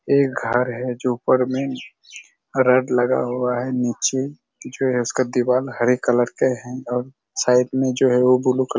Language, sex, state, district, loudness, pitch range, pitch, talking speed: Hindi, male, Chhattisgarh, Raigarh, -20 LUFS, 125-130 Hz, 125 Hz, 185 wpm